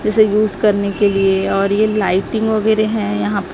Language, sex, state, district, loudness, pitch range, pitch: Hindi, female, Maharashtra, Gondia, -16 LUFS, 195-215 Hz, 210 Hz